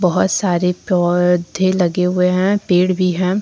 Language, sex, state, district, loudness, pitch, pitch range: Hindi, female, Jharkhand, Deoghar, -16 LUFS, 180 Hz, 180-185 Hz